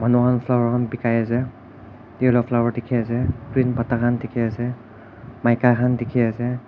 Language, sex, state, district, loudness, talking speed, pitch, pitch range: Nagamese, male, Nagaland, Kohima, -21 LUFS, 170 wpm, 120 Hz, 115-125 Hz